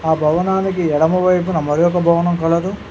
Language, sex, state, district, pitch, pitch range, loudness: Telugu, male, Telangana, Mahabubabad, 170 Hz, 160-180 Hz, -16 LUFS